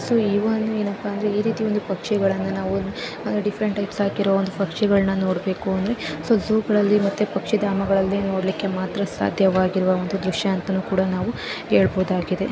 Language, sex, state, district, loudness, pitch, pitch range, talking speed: Kannada, female, Karnataka, Bellary, -22 LUFS, 195 Hz, 190-210 Hz, 145 wpm